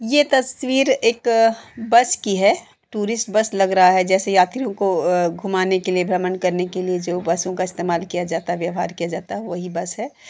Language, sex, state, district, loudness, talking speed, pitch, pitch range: Hindi, female, Uttar Pradesh, Jalaun, -19 LUFS, 190 wpm, 185 Hz, 180-225 Hz